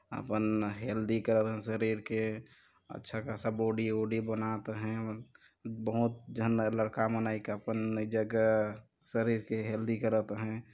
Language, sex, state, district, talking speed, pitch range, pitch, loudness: Chhattisgarhi, male, Chhattisgarh, Jashpur, 135 wpm, 110-115 Hz, 110 Hz, -33 LUFS